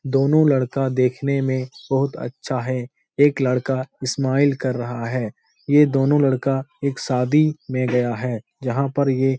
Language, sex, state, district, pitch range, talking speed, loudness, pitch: Hindi, male, Bihar, Supaul, 130-140 Hz, 160 wpm, -21 LUFS, 135 Hz